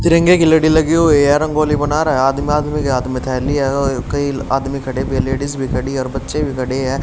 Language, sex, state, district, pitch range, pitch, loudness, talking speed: Hindi, male, Haryana, Jhajjar, 130-150 Hz, 140 Hz, -16 LUFS, 265 wpm